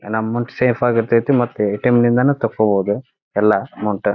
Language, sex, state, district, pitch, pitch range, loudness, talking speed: Kannada, male, Karnataka, Dharwad, 115 Hz, 105-120 Hz, -17 LUFS, 200 wpm